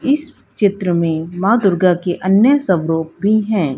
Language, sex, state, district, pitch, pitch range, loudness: Hindi, female, Haryana, Jhajjar, 190 Hz, 170-215 Hz, -15 LUFS